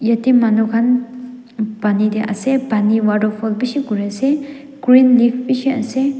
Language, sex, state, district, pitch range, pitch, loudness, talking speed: Nagamese, female, Nagaland, Dimapur, 215-260 Hz, 245 Hz, -16 LUFS, 145 wpm